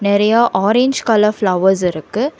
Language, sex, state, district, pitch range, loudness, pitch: Tamil, female, Karnataka, Bangalore, 190-230 Hz, -14 LUFS, 210 Hz